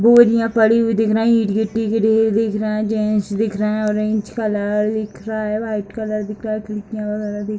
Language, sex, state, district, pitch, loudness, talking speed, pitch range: Hindi, female, Bihar, Purnia, 215 Hz, -18 LUFS, 245 wpm, 210-220 Hz